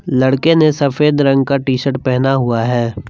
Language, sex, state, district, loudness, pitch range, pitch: Hindi, male, Jharkhand, Palamu, -14 LUFS, 130-140 Hz, 135 Hz